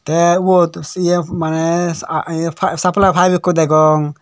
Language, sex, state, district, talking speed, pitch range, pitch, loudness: Chakma, male, Tripura, Dhalai, 155 wpm, 160-180 Hz, 170 Hz, -15 LUFS